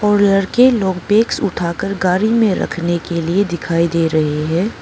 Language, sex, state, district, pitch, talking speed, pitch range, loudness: Hindi, female, Arunachal Pradesh, Papum Pare, 185 Hz, 175 wpm, 170-205 Hz, -16 LUFS